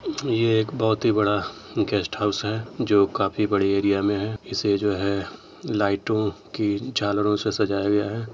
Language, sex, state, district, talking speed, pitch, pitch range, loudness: Hindi, male, Uttar Pradesh, Etah, 170 wpm, 105 Hz, 100-110 Hz, -23 LUFS